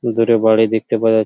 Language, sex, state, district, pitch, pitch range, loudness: Bengali, male, West Bengal, Paschim Medinipur, 110 Hz, 110-115 Hz, -15 LUFS